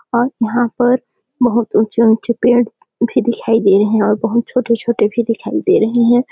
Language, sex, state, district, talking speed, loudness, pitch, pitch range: Hindi, female, Chhattisgarh, Sarguja, 200 wpm, -15 LUFS, 235 Hz, 225-245 Hz